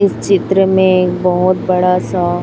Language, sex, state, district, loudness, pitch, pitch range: Hindi, female, Chhattisgarh, Raipur, -13 LUFS, 185 Hz, 180-190 Hz